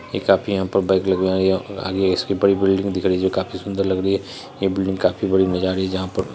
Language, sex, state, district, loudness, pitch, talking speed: Hindi, male, Bihar, Saharsa, -20 LUFS, 95 Hz, 310 wpm